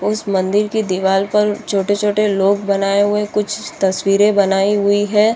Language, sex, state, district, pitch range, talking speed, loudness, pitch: Hindi, female, Bihar, Saharsa, 195-210 Hz, 170 wpm, -16 LUFS, 205 Hz